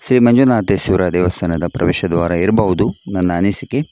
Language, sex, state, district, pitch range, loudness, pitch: Kannada, male, Karnataka, Dakshina Kannada, 90-125 Hz, -15 LUFS, 95 Hz